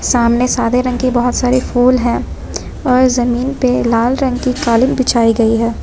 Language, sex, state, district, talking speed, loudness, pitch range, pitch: Hindi, female, Jharkhand, Ranchi, 185 wpm, -14 LUFS, 235-255 Hz, 250 Hz